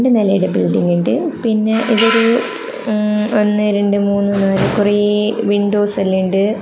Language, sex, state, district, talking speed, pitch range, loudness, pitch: Malayalam, female, Kerala, Kasaragod, 135 wpm, 200-225 Hz, -15 LUFS, 210 Hz